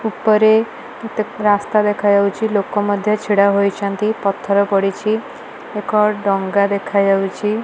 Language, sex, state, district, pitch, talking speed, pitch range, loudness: Odia, female, Odisha, Malkangiri, 205 Hz, 100 wpm, 200-215 Hz, -17 LUFS